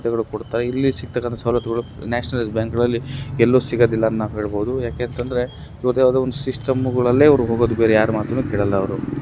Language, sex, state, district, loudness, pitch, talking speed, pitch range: Kannada, male, Karnataka, Gulbarga, -20 LUFS, 120 Hz, 150 wpm, 110-125 Hz